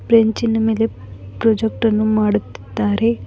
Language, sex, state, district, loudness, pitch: Kannada, female, Karnataka, Bidar, -18 LUFS, 215 Hz